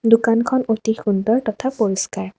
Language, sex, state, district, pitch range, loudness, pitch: Assamese, female, Assam, Kamrup Metropolitan, 215-230 Hz, -19 LUFS, 225 Hz